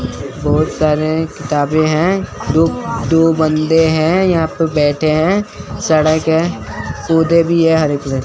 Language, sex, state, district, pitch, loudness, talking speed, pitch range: Hindi, female, Chandigarh, Chandigarh, 155 Hz, -14 LUFS, 125 wpm, 150-165 Hz